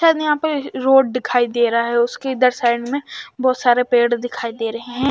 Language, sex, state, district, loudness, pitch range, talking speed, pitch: Hindi, female, Haryana, Charkhi Dadri, -18 LUFS, 240-265 Hz, 225 wpm, 250 Hz